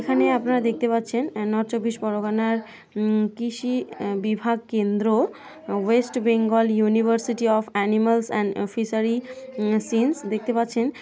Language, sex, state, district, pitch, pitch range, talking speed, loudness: Bengali, female, West Bengal, North 24 Parganas, 225 Hz, 215-235 Hz, 130 wpm, -23 LUFS